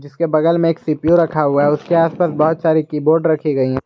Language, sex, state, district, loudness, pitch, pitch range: Hindi, male, Jharkhand, Garhwa, -15 LUFS, 155 Hz, 150-165 Hz